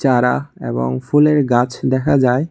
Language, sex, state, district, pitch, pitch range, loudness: Bengali, male, Tripura, West Tripura, 130 Hz, 125-140 Hz, -16 LUFS